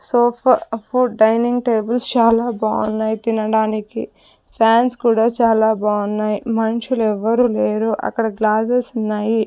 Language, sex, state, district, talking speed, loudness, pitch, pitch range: Telugu, female, Andhra Pradesh, Sri Satya Sai, 100 wpm, -17 LUFS, 225 Hz, 215-240 Hz